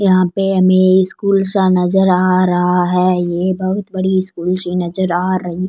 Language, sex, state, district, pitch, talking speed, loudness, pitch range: Rajasthani, female, Rajasthan, Churu, 185 Hz, 190 wpm, -14 LUFS, 180-190 Hz